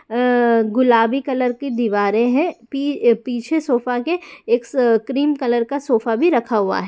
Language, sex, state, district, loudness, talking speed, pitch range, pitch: Hindi, female, Bihar, Jamui, -18 LUFS, 155 wpm, 235-275 Hz, 245 Hz